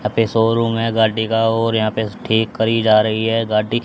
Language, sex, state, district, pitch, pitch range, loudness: Hindi, male, Haryana, Rohtak, 115 Hz, 110-115 Hz, -17 LUFS